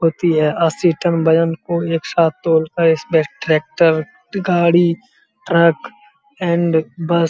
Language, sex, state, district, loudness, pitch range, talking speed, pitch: Hindi, male, Uttar Pradesh, Muzaffarnagar, -16 LUFS, 160-175 Hz, 105 wpm, 170 Hz